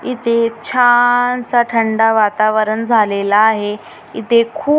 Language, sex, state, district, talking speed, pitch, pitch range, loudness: Marathi, female, Maharashtra, Gondia, 125 wpm, 230 Hz, 215-240 Hz, -14 LUFS